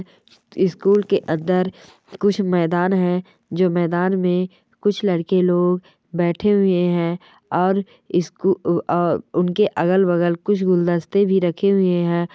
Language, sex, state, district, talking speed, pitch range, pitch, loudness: Hindi, female, Bihar, Jamui, 135 wpm, 175-190 Hz, 180 Hz, -19 LUFS